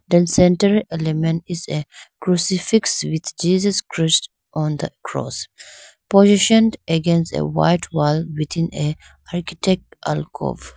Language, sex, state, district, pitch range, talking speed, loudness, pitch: English, female, Arunachal Pradesh, Lower Dibang Valley, 155-185 Hz, 120 wpm, -19 LUFS, 165 Hz